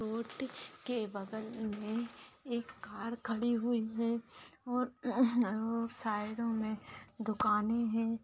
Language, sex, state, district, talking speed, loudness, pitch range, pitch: Hindi, female, Maharashtra, Pune, 100 wpm, -36 LUFS, 220-240 Hz, 230 Hz